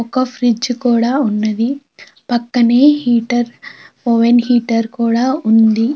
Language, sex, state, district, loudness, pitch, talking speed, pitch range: Telugu, female, Andhra Pradesh, Krishna, -14 LUFS, 240 Hz, 100 wpm, 230-250 Hz